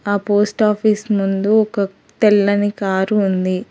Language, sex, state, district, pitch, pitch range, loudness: Telugu, female, Telangana, Hyderabad, 205 Hz, 195-210 Hz, -17 LUFS